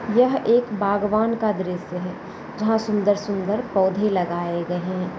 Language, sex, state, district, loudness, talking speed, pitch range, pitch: Hindi, female, Bihar, Gopalganj, -22 LUFS, 140 wpm, 180-220 Hz, 205 Hz